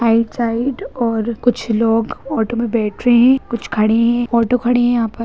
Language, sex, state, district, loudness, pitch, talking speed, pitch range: Hindi, female, Bihar, Jahanabad, -16 LUFS, 235 Hz, 205 wpm, 225-240 Hz